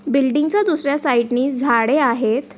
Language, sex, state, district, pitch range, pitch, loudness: Marathi, female, Maharashtra, Aurangabad, 240-295 Hz, 275 Hz, -17 LUFS